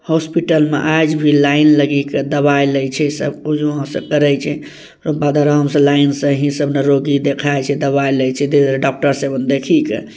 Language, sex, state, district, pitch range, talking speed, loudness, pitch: Maithili, male, Bihar, Bhagalpur, 140-150 Hz, 190 wpm, -15 LUFS, 145 Hz